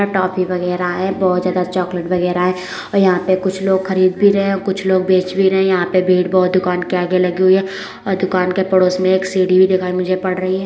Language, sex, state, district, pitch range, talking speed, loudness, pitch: Hindi, female, Uttar Pradesh, Jalaun, 180-190 Hz, 270 wpm, -16 LUFS, 185 Hz